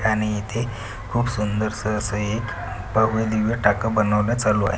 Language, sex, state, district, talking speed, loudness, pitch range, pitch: Marathi, male, Maharashtra, Pune, 140 wpm, -22 LUFS, 105-110 Hz, 110 Hz